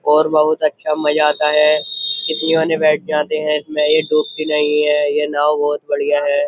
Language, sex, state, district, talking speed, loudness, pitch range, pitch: Hindi, male, Uttar Pradesh, Jyotiba Phule Nagar, 195 wpm, -16 LUFS, 150-155 Hz, 150 Hz